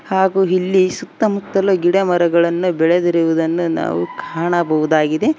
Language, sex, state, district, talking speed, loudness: Kannada, female, Karnataka, Koppal, 90 wpm, -16 LUFS